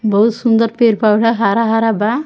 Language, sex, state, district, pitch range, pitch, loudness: Bhojpuri, female, Bihar, Muzaffarpur, 215-230 Hz, 225 Hz, -13 LUFS